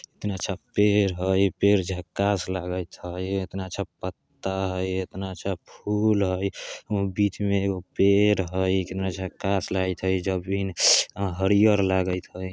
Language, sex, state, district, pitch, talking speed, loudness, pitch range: Bajjika, male, Bihar, Vaishali, 95 Hz, 135 wpm, -25 LUFS, 95-100 Hz